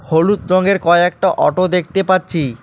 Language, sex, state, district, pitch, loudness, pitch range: Bengali, male, West Bengal, Alipurduar, 180 Hz, -14 LUFS, 165-190 Hz